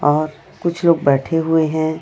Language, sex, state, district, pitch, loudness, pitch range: Hindi, female, Chhattisgarh, Raipur, 160 Hz, -17 LUFS, 150-165 Hz